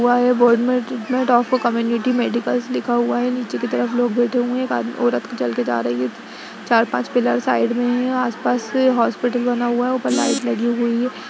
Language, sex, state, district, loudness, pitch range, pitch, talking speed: Hindi, female, Uttar Pradesh, Budaun, -19 LUFS, 235-250 Hz, 240 Hz, 220 wpm